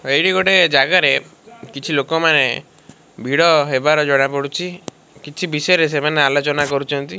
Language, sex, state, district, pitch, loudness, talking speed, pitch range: Odia, male, Odisha, Malkangiri, 145 Hz, -15 LUFS, 125 wpm, 140-165 Hz